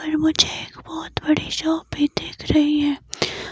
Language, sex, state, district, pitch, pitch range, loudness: Hindi, female, Himachal Pradesh, Shimla, 305 Hz, 295-315 Hz, -21 LUFS